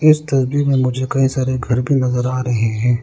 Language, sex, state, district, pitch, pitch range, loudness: Hindi, male, Arunachal Pradesh, Lower Dibang Valley, 130 Hz, 125-135 Hz, -17 LUFS